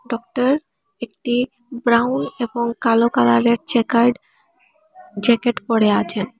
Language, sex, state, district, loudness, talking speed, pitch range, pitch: Bengali, female, Assam, Hailakandi, -18 LUFS, 95 wpm, 230-250 Hz, 235 Hz